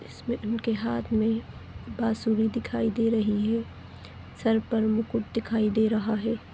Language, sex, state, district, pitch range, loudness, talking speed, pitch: Hindi, female, Goa, North and South Goa, 220-230 Hz, -27 LUFS, 145 wpm, 225 Hz